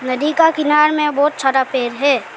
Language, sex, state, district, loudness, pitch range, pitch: Hindi, female, Arunachal Pradesh, Lower Dibang Valley, -15 LUFS, 265-300 Hz, 285 Hz